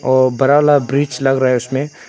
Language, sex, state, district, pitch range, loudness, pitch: Hindi, male, Arunachal Pradesh, Longding, 130-145 Hz, -14 LUFS, 135 Hz